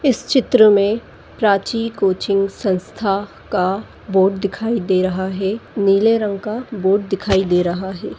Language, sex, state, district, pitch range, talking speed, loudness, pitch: Hindi, female, Chhattisgarh, Sarguja, 190-220 Hz, 145 wpm, -18 LUFS, 200 Hz